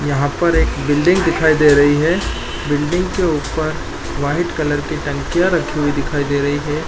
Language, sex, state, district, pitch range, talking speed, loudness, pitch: Hindi, male, Chhattisgarh, Korba, 145-165 Hz, 185 wpm, -17 LUFS, 150 Hz